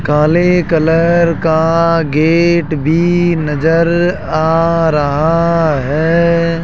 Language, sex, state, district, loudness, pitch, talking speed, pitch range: Hindi, male, Rajasthan, Jaipur, -12 LUFS, 165 Hz, 80 wpm, 155-170 Hz